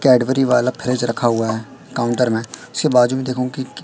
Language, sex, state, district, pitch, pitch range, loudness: Hindi, female, Madhya Pradesh, Katni, 125 Hz, 120-130 Hz, -18 LUFS